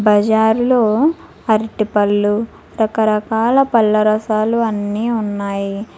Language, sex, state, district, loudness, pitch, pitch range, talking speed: Telugu, female, Telangana, Hyderabad, -16 LUFS, 215 Hz, 210-230 Hz, 70 wpm